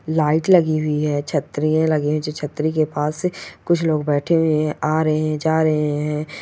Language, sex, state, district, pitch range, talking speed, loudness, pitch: Angika, male, Bihar, Samastipur, 150-160 Hz, 195 wpm, -19 LUFS, 155 Hz